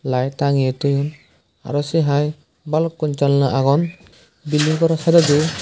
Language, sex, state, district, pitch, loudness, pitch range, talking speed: Chakma, male, Tripura, West Tripura, 145 Hz, -18 LUFS, 140-160 Hz, 130 wpm